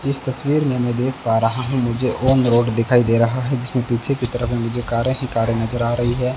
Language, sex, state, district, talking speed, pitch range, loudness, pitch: Hindi, male, Rajasthan, Bikaner, 265 wpm, 120-130 Hz, -19 LUFS, 120 Hz